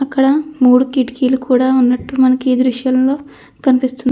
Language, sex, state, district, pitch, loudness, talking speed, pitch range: Telugu, female, Andhra Pradesh, Krishna, 260 Hz, -14 LUFS, 130 wpm, 255-265 Hz